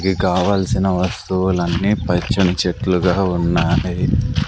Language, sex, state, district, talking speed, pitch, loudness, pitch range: Telugu, male, Andhra Pradesh, Sri Satya Sai, 80 wpm, 95 Hz, -18 LUFS, 90-95 Hz